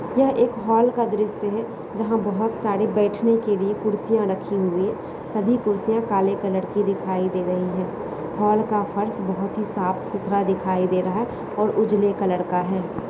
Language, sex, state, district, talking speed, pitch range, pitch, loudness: Hindi, female, Jharkhand, Sahebganj, 190 wpm, 190-220 Hz, 205 Hz, -23 LUFS